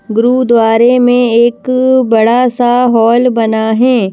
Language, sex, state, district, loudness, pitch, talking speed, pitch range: Hindi, female, Madhya Pradesh, Bhopal, -9 LUFS, 240 Hz, 130 wpm, 225-250 Hz